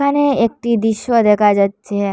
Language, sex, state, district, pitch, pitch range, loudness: Bengali, female, Assam, Hailakandi, 225 Hz, 205-235 Hz, -15 LUFS